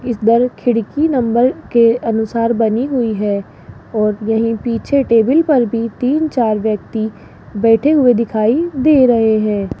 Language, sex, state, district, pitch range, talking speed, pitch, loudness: Hindi, female, Rajasthan, Jaipur, 220-250 Hz, 145 wpm, 230 Hz, -15 LUFS